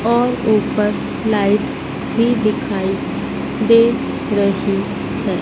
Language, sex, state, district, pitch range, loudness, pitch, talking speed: Hindi, female, Madhya Pradesh, Dhar, 205-235 Hz, -17 LUFS, 215 Hz, 90 wpm